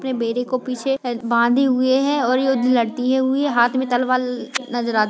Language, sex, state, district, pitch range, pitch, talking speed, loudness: Hindi, female, Bihar, Jahanabad, 240-260 Hz, 250 Hz, 200 wpm, -19 LUFS